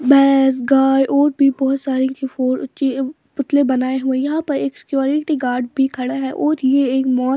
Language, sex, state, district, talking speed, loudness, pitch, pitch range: Hindi, female, Bihar, Patna, 155 wpm, -17 LUFS, 270 Hz, 260-275 Hz